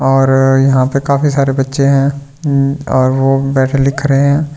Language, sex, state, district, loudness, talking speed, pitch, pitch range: Hindi, male, Delhi, New Delhi, -12 LUFS, 210 wpm, 135 Hz, 135-140 Hz